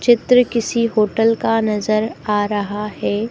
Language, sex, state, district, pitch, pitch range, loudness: Hindi, female, Madhya Pradesh, Dhar, 220 Hz, 210-230 Hz, -17 LUFS